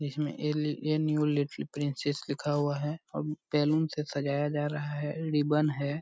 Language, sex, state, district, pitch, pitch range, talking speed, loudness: Hindi, male, Bihar, Purnia, 150 Hz, 145-150 Hz, 140 wpm, -31 LUFS